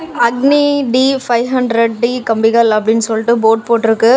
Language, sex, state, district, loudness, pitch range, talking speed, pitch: Tamil, female, Tamil Nadu, Namakkal, -13 LUFS, 225-255 Hz, 145 wpm, 235 Hz